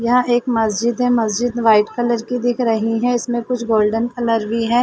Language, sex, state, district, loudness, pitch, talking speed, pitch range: Hindi, female, Uttar Pradesh, Varanasi, -17 LUFS, 235 Hz, 210 wpm, 225-245 Hz